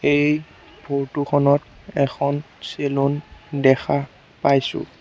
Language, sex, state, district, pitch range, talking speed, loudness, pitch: Assamese, male, Assam, Sonitpur, 140-145 Hz, 85 wpm, -21 LUFS, 140 Hz